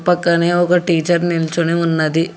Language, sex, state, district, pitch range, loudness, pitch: Telugu, male, Telangana, Hyderabad, 165-175 Hz, -16 LUFS, 170 Hz